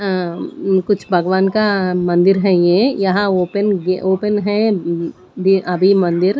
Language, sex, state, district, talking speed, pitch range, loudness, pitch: Hindi, female, Punjab, Pathankot, 120 wpm, 180-200 Hz, -16 LUFS, 190 Hz